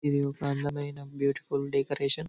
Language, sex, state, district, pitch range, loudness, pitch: Telugu, male, Telangana, Karimnagar, 140-145 Hz, -30 LUFS, 140 Hz